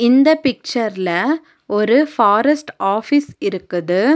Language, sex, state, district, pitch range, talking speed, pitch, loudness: Tamil, female, Tamil Nadu, Nilgiris, 200-295 Hz, 85 wpm, 240 Hz, -17 LUFS